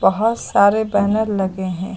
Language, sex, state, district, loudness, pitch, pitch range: Hindi, female, Uttar Pradesh, Lucknow, -18 LUFS, 205 Hz, 190-220 Hz